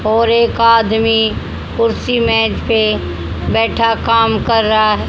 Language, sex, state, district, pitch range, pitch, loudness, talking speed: Hindi, female, Haryana, Charkhi Dadri, 215-230 Hz, 225 Hz, -13 LUFS, 120 wpm